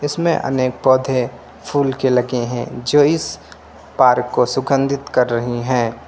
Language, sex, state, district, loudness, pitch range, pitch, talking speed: Hindi, male, Uttar Pradesh, Lucknow, -17 LUFS, 120-140 Hz, 130 Hz, 150 wpm